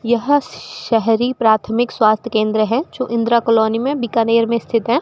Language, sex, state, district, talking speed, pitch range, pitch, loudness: Hindi, female, Rajasthan, Bikaner, 165 wpm, 225-240 Hz, 230 Hz, -16 LUFS